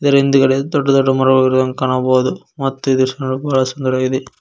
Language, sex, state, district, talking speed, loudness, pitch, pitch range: Kannada, male, Karnataka, Koppal, 175 wpm, -15 LUFS, 130 Hz, 130-135 Hz